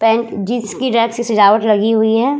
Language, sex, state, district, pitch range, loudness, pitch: Hindi, female, Uttar Pradesh, Budaun, 215-235 Hz, -14 LUFS, 225 Hz